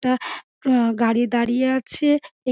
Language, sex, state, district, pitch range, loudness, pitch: Bengali, female, West Bengal, Dakshin Dinajpur, 235-260 Hz, -21 LUFS, 255 Hz